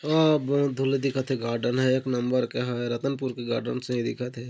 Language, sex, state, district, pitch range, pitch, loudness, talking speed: Chhattisgarhi, male, Chhattisgarh, Korba, 120-135 Hz, 130 Hz, -26 LUFS, 240 wpm